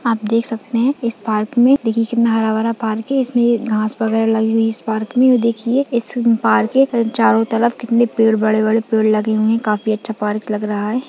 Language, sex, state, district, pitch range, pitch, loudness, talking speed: Hindi, female, Maharashtra, Chandrapur, 220-235 Hz, 225 Hz, -16 LUFS, 200 wpm